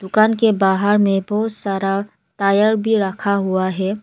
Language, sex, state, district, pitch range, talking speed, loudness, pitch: Hindi, female, Arunachal Pradesh, Lower Dibang Valley, 195-215 Hz, 165 wpm, -17 LUFS, 200 Hz